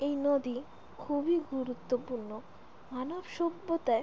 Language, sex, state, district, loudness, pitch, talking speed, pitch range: Bengali, female, West Bengal, Jalpaiguri, -34 LUFS, 270 Hz, 90 wpm, 250-330 Hz